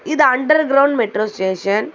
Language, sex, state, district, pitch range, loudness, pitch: Tamil, female, Tamil Nadu, Chennai, 210-290 Hz, -16 LUFS, 245 Hz